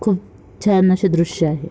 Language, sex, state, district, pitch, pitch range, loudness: Marathi, female, Maharashtra, Sindhudurg, 185 Hz, 170-195 Hz, -17 LUFS